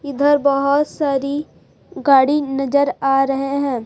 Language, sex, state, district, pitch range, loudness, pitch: Hindi, female, Chhattisgarh, Raipur, 270-285 Hz, -17 LUFS, 280 Hz